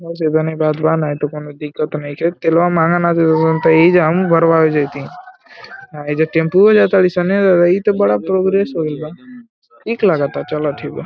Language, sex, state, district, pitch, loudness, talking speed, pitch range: Hindi, male, Uttar Pradesh, Deoria, 165 Hz, -14 LUFS, 180 wpm, 155-185 Hz